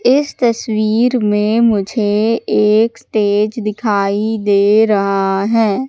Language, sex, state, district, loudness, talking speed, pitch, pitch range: Hindi, female, Madhya Pradesh, Katni, -14 LUFS, 110 wpm, 215 Hz, 205-230 Hz